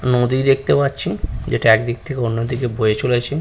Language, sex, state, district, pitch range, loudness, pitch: Bengali, male, West Bengal, Purulia, 115-135 Hz, -18 LUFS, 125 Hz